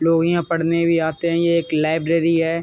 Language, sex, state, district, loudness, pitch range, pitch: Hindi, male, Uttar Pradesh, Muzaffarnagar, -19 LUFS, 165-170 Hz, 165 Hz